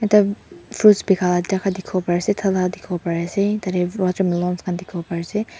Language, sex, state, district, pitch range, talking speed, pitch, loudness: Nagamese, female, Mizoram, Aizawl, 175-200 Hz, 170 wpm, 185 Hz, -20 LUFS